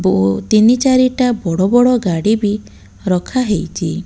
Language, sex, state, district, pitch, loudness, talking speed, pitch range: Odia, female, Odisha, Malkangiri, 210 Hz, -14 LUFS, 120 wpm, 175-245 Hz